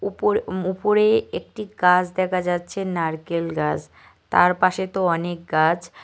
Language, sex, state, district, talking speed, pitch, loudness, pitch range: Bengali, male, West Bengal, Cooch Behar, 130 wpm, 180 Hz, -21 LUFS, 170-190 Hz